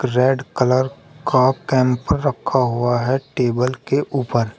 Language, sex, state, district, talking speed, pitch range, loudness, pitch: Hindi, male, Uttar Pradesh, Shamli, 130 wpm, 125-130 Hz, -19 LUFS, 130 Hz